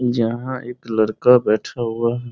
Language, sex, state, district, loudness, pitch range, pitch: Hindi, male, Bihar, Muzaffarpur, -19 LUFS, 115-125 Hz, 120 Hz